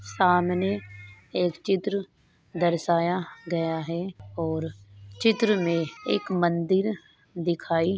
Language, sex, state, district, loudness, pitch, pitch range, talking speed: Hindi, female, Rajasthan, Nagaur, -26 LUFS, 170 Hz, 160-185 Hz, 90 wpm